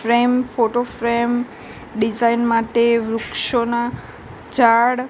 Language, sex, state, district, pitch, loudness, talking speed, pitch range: Gujarati, female, Gujarat, Gandhinagar, 235 Hz, -18 LUFS, 80 wpm, 230-240 Hz